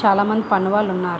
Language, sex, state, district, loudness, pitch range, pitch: Telugu, female, Andhra Pradesh, Visakhapatnam, -19 LUFS, 190-210 Hz, 200 Hz